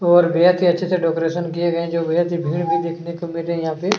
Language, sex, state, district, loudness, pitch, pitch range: Hindi, male, Chhattisgarh, Kabirdham, -19 LUFS, 170 Hz, 165-175 Hz